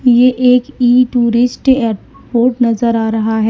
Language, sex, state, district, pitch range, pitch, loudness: Hindi, female, Uttar Pradesh, Lalitpur, 230-250 Hz, 245 Hz, -12 LUFS